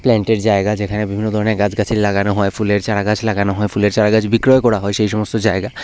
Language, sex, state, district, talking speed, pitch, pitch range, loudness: Bengali, male, Tripura, West Tripura, 205 wpm, 105 Hz, 100-110 Hz, -16 LUFS